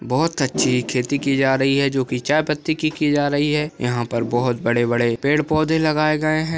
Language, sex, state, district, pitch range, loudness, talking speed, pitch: Hindi, male, Maharashtra, Nagpur, 125-155 Hz, -19 LUFS, 190 wpm, 140 Hz